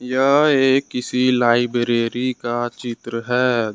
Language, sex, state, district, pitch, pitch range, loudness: Hindi, male, Jharkhand, Ranchi, 125 Hz, 120-130 Hz, -18 LUFS